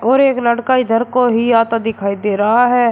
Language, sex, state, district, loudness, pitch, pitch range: Hindi, male, Uttar Pradesh, Shamli, -14 LUFS, 235 Hz, 225-245 Hz